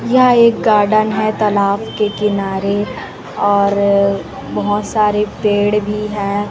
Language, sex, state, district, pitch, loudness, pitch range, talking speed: Hindi, female, Chhattisgarh, Raipur, 210 Hz, -15 LUFS, 200-215 Hz, 120 wpm